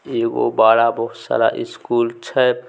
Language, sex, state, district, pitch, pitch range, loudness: Maithili, male, Bihar, Samastipur, 120 Hz, 115-130 Hz, -18 LUFS